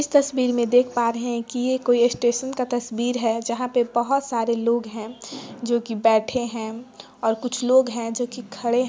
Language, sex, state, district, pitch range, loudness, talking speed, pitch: Hindi, female, Bihar, Gopalganj, 230-250 Hz, -22 LUFS, 200 wpm, 240 Hz